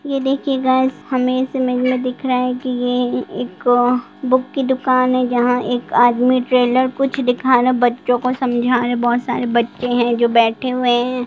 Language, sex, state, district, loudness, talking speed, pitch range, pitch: Hindi, female, Bihar, Sitamarhi, -17 LUFS, 190 wpm, 245-255 Hz, 250 Hz